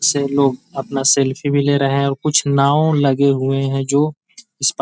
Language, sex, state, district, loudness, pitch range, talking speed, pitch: Hindi, male, Bihar, East Champaran, -16 LUFS, 135-145 Hz, 200 wpm, 140 Hz